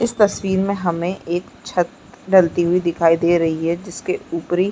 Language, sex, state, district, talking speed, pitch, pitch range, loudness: Hindi, female, Chhattisgarh, Bastar, 180 wpm, 180 Hz, 170-200 Hz, -19 LUFS